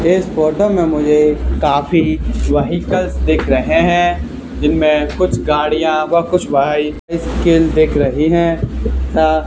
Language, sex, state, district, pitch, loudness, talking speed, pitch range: Hindi, male, Haryana, Charkhi Dadri, 155 Hz, -14 LUFS, 135 wpm, 150-170 Hz